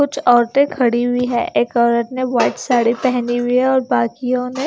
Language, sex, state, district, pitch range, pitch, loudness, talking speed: Hindi, female, Himachal Pradesh, Shimla, 240-255 Hz, 245 Hz, -16 LUFS, 205 wpm